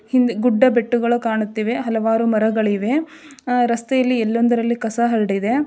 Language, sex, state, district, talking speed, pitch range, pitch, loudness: Kannada, female, Karnataka, Dharwad, 105 wpm, 225-245 Hz, 235 Hz, -18 LUFS